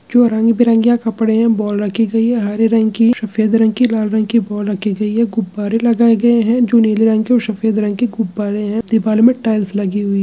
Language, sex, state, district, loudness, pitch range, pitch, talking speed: Hindi, male, Chhattisgarh, Kabirdham, -14 LUFS, 210-230 Hz, 225 Hz, 230 wpm